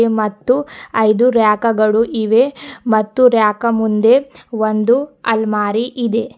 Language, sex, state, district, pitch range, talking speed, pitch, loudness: Kannada, female, Karnataka, Bidar, 215-240 Hz, 105 wpm, 225 Hz, -15 LUFS